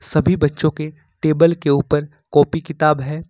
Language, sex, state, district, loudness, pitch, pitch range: Hindi, male, Jharkhand, Ranchi, -17 LUFS, 155 Hz, 150-160 Hz